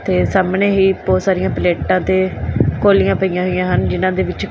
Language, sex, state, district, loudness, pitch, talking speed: Punjabi, female, Punjab, Kapurthala, -16 LUFS, 180 Hz, 185 wpm